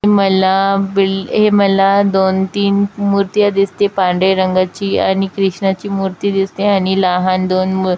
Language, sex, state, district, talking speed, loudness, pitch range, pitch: Marathi, female, Maharashtra, Chandrapur, 135 wpm, -14 LUFS, 190-200 Hz, 195 Hz